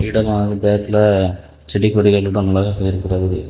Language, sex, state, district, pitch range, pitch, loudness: Tamil, male, Tamil Nadu, Kanyakumari, 95-105 Hz, 100 Hz, -16 LUFS